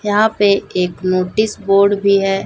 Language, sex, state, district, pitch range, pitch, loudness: Hindi, female, Chhattisgarh, Raipur, 185-205 Hz, 200 Hz, -15 LUFS